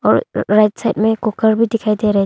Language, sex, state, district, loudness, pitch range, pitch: Hindi, female, Arunachal Pradesh, Longding, -16 LUFS, 210-220 Hz, 215 Hz